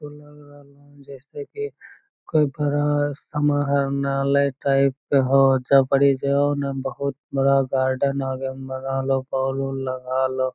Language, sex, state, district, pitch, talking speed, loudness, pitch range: Magahi, male, Bihar, Lakhisarai, 140 Hz, 180 wpm, -22 LUFS, 135-145 Hz